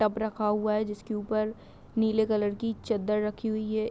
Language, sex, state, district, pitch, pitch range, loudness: Hindi, female, Uttar Pradesh, Hamirpur, 215 Hz, 210-220 Hz, -29 LUFS